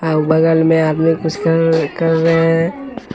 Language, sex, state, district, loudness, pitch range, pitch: Hindi, male, Bihar, Katihar, -14 LUFS, 160-165 Hz, 165 Hz